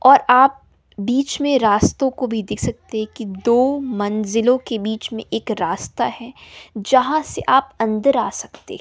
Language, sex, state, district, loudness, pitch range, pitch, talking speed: Hindi, female, Bihar, West Champaran, -18 LUFS, 220-270 Hz, 245 Hz, 170 wpm